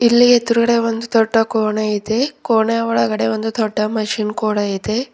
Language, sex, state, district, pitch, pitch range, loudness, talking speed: Kannada, female, Karnataka, Bidar, 220 Hz, 215-230 Hz, -17 LUFS, 150 wpm